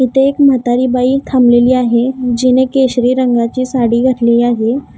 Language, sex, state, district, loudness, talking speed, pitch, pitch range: Marathi, female, Maharashtra, Gondia, -12 LUFS, 145 wpm, 250 Hz, 240-260 Hz